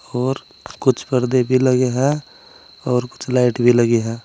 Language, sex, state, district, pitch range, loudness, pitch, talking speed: Hindi, male, Uttar Pradesh, Saharanpur, 120-130 Hz, -18 LUFS, 125 Hz, 170 wpm